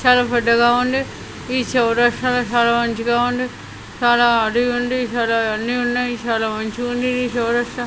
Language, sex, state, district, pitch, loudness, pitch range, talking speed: Telugu, male, Karnataka, Bellary, 240 Hz, -18 LUFS, 235-245 Hz, 130 wpm